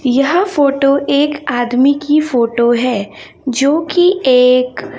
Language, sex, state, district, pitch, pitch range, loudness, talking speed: Hindi, female, Chhattisgarh, Raipur, 275 Hz, 250-295 Hz, -13 LUFS, 110 wpm